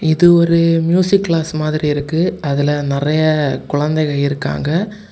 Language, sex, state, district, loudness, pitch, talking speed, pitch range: Tamil, male, Tamil Nadu, Kanyakumari, -15 LUFS, 155 Hz, 115 wpm, 145-170 Hz